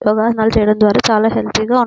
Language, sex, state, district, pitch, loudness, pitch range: Telugu, female, Andhra Pradesh, Anantapur, 220 Hz, -14 LUFS, 215-225 Hz